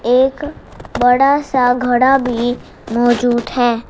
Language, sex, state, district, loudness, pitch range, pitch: Hindi, female, Gujarat, Gandhinagar, -14 LUFS, 240-260 Hz, 245 Hz